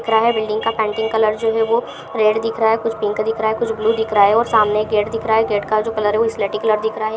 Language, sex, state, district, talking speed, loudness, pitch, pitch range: Hindi, female, Bihar, Lakhisarai, 290 wpm, -17 LUFS, 220 Hz, 215-225 Hz